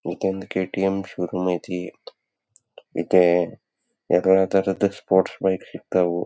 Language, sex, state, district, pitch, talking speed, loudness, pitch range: Kannada, male, Karnataka, Belgaum, 95 Hz, 95 wpm, -22 LUFS, 90-95 Hz